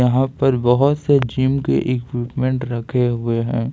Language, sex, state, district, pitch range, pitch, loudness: Hindi, male, Jharkhand, Ranchi, 120-135 Hz, 125 Hz, -18 LUFS